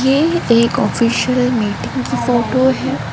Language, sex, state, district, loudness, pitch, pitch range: Hindi, female, Arunachal Pradesh, Lower Dibang Valley, -15 LUFS, 250 Hz, 235-260 Hz